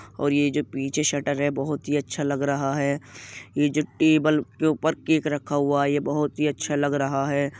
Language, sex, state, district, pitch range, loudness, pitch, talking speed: Hindi, male, Uttar Pradesh, Jyotiba Phule Nagar, 140-150 Hz, -24 LUFS, 145 Hz, 220 wpm